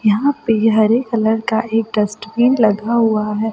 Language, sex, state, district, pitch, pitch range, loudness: Hindi, female, Delhi, New Delhi, 225 Hz, 215-230 Hz, -16 LUFS